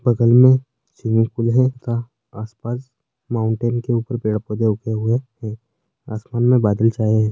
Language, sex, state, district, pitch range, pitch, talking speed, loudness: Hindi, male, Rajasthan, Nagaur, 110-125 Hz, 115 Hz, 170 wpm, -19 LUFS